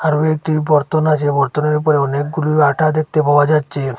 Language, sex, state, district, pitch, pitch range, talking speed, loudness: Bengali, male, Assam, Hailakandi, 150 Hz, 145-155 Hz, 165 wpm, -15 LUFS